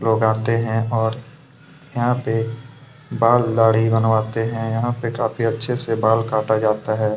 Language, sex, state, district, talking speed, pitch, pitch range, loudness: Hindi, male, Chhattisgarh, Kabirdham, 150 wpm, 115 Hz, 110-120 Hz, -19 LUFS